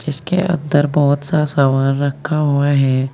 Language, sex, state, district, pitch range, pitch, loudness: Hindi, male, Uttar Pradesh, Saharanpur, 140-150 Hz, 145 Hz, -16 LUFS